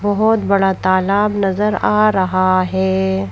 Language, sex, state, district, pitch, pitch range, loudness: Hindi, female, Madhya Pradesh, Bhopal, 195 Hz, 185-205 Hz, -15 LUFS